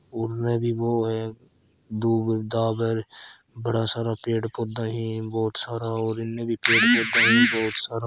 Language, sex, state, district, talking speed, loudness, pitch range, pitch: Marwari, male, Rajasthan, Churu, 120 wpm, -23 LUFS, 110-115 Hz, 115 Hz